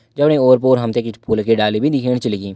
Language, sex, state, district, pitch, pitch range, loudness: Hindi, male, Uttarakhand, Uttarkashi, 120 Hz, 110-130 Hz, -16 LUFS